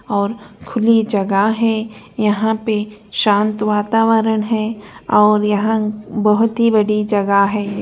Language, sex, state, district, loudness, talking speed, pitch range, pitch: Hindi, female, Bihar, Jahanabad, -16 LUFS, 125 wpm, 210-220 Hz, 215 Hz